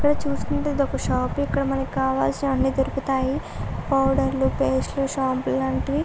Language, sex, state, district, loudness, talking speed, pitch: Telugu, female, Andhra Pradesh, Guntur, -23 LUFS, 130 wpm, 260 Hz